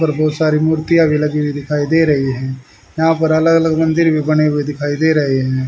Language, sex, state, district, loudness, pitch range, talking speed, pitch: Hindi, male, Haryana, Rohtak, -15 LUFS, 145-160 Hz, 245 wpm, 155 Hz